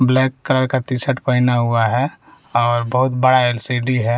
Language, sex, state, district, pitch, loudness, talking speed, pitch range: Hindi, male, Bihar, West Champaran, 125 Hz, -17 LUFS, 170 wpm, 120-130 Hz